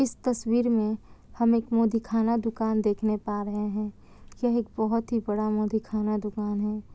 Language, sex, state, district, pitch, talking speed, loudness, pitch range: Hindi, female, Bihar, Kishanganj, 220 Hz, 190 wpm, -27 LUFS, 210-230 Hz